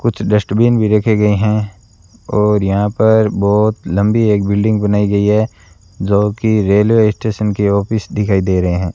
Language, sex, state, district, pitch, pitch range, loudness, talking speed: Hindi, male, Rajasthan, Bikaner, 105 Hz, 100-110 Hz, -14 LUFS, 175 wpm